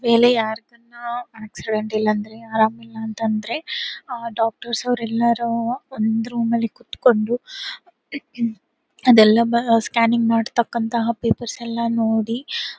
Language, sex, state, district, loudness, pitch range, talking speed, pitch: Kannada, female, Karnataka, Bellary, -20 LUFS, 225-240 Hz, 80 wpm, 235 Hz